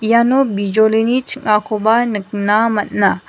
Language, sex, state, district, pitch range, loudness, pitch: Garo, female, Meghalaya, West Garo Hills, 210-235 Hz, -15 LUFS, 220 Hz